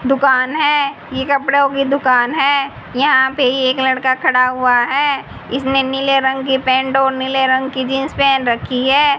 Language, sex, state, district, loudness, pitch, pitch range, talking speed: Hindi, female, Haryana, Jhajjar, -15 LUFS, 265 Hz, 260-275 Hz, 175 wpm